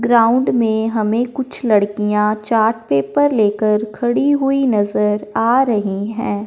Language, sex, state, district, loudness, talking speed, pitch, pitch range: Hindi, male, Punjab, Fazilka, -16 LUFS, 130 wpm, 220 Hz, 210-240 Hz